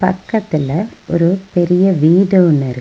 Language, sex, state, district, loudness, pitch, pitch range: Tamil, female, Tamil Nadu, Nilgiris, -14 LUFS, 175 Hz, 160-190 Hz